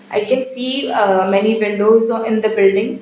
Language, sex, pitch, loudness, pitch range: English, female, 220 Hz, -15 LUFS, 200-230 Hz